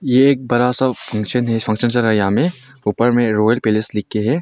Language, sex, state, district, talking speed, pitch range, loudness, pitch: Hindi, male, Arunachal Pradesh, Longding, 165 wpm, 110-125 Hz, -17 LUFS, 120 Hz